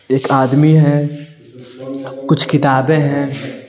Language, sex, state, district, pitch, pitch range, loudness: Hindi, male, Bihar, Patna, 140 Hz, 135-150 Hz, -13 LUFS